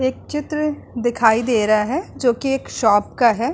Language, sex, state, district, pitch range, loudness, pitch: Hindi, female, Uttar Pradesh, Muzaffarnagar, 225-275 Hz, -19 LUFS, 245 Hz